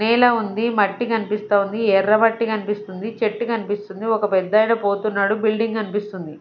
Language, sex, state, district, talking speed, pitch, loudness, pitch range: Telugu, female, Andhra Pradesh, Sri Satya Sai, 130 wpm, 215 Hz, -20 LUFS, 200-225 Hz